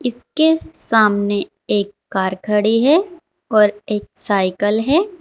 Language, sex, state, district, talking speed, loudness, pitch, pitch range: Hindi, female, Uttar Pradesh, Shamli, 115 wpm, -17 LUFS, 215 Hz, 205-305 Hz